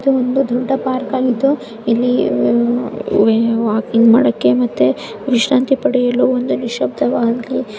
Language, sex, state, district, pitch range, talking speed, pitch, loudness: Kannada, female, Karnataka, Chamarajanagar, 230-260 Hz, 90 wpm, 245 Hz, -15 LUFS